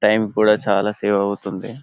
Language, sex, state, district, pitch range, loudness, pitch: Telugu, male, Telangana, Karimnagar, 100-110 Hz, -19 LUFS, 105 Hz